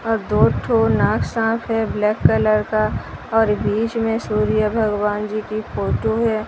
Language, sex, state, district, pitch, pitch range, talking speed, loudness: Hindi, female, Odisha, Sambalpur, 215 Hz, 215-225 Hz, 165 wpm, -19 LUFS